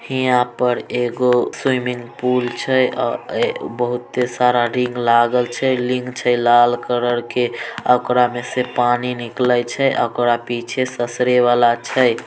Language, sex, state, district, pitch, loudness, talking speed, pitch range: Maithili, male, Bihar, Samastipur, 125 Hz, -18 LUFS, 130 wpm, 120-125 Hz